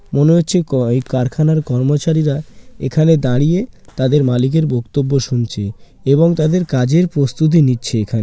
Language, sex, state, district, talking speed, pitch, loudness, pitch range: Bengali, male, West Bengal, Jalpaiguri, 115 wpm, 140 Hz, -15 LUFS, 125-160 Hz